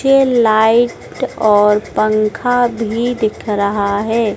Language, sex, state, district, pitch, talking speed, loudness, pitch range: Hindi, female, Madhya Pradesh, Dhar, 220 Hz, 110 wpm, -14 LUFS, 210-240 Hz